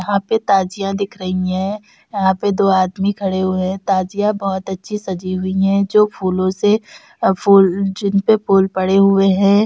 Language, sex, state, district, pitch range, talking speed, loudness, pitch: Hindi, female, Uttar Pradesh, Jyotiba Phule Nagar, 190-200 Hz, 185 wpm, -16 LUFS, 195 Hz